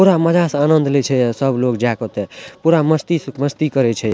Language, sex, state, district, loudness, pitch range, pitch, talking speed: Maithili, male, Bihar, Madhepura, -16 LUFS, 120-155 Hz, 140 Hz, 260 wpm